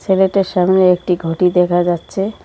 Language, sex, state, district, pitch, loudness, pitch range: Bengali, female, West Bengal, Cooch Behar, 180 Hz, -15 LUFS, 175-190 Hz